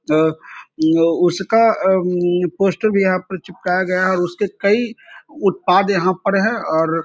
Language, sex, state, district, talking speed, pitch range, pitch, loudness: Hindi, male, Bihar, Samastipur, 160 wpm, 175-200 Hz, 185 Hz, -17 LUFS